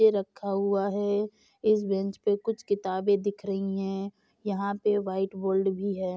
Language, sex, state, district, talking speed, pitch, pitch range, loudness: Hindi, female, Bihar, Saharsa, 175 wpm, 200 Hz, 195-205 Hz, -29 LUFS